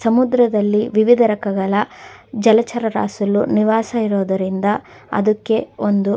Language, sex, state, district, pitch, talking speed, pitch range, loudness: Kannada, female, Karnataka, Dakshina Kannada, 215 Hz, 80 wpm, 205-225 Hz, -17 LUFS